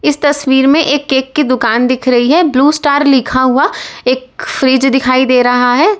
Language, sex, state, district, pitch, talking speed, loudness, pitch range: Hindi, female, Uttar Pradesh, Lalitpur, 265 Hz, 200 wpm, -11 LUFS, 255-290 Hz